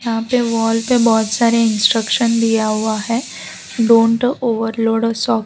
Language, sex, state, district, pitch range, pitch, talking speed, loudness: Hindi, female, Gujarat, Valsad, 225-230 Hz, 230 Hz, 155 wpm, -15 LUFS